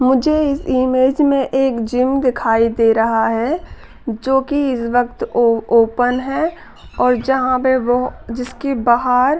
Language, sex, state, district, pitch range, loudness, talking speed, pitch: Hindi, female, Uttar Pradesh, Gorakhpur, 235-270 Hz, -16 LUFS, 145 wpm, 255 Hz